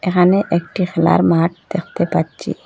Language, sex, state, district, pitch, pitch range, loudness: Bengali, female, Assam, Hailakandi, 180 Hz, 165-180 Hz, -17 LUFS